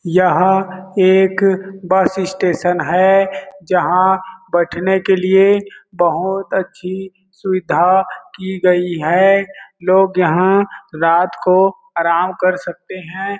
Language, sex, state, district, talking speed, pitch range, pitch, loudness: Hindi, male, Chhattisgarh, Balrampur, 105 wpm, 180-190 Hz, 185 Hz, -15 LUFS